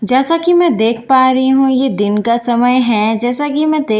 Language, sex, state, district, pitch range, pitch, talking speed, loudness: Hindi, female, Bihar, Katihar, 230-275 Hz, 255 Hz, 240 wpm, -12 LUFS